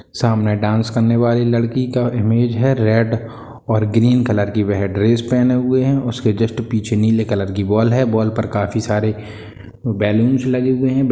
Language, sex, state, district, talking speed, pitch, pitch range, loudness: Hindi, male, Bihar, Sitamarhi, 180 wpm, 115 Hz, 110-120 Hz, -17 LUFS